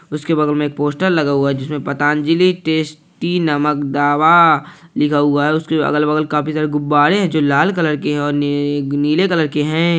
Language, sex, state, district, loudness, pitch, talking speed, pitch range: Hindi, male, Bihar, Araria, -15 LUFS, 150 Hz, 205 wpm, 145-160 Hz